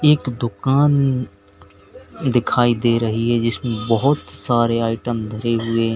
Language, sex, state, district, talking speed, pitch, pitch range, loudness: Hindi, male, Uttar Pradesh, Lalitpur, 130 wpm, 115 Hz, 115-125 Hz, -19 LUFS